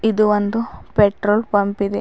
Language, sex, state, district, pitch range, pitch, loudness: Kannada, female, Karnataka, Bidar, 205-220 Hz, 205 Hz, -18 LUFS